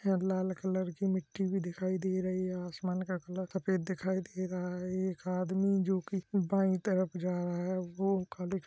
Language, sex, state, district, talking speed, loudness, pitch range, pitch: Hindi, male, Bihar, Saran, 205 wpm, -34 LUFS, 180-190 Hz, 185 Hz